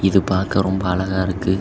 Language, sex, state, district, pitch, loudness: Tamil, male, Tamil Nadu, Kanyakumari, 95 Hz, -19 LUFS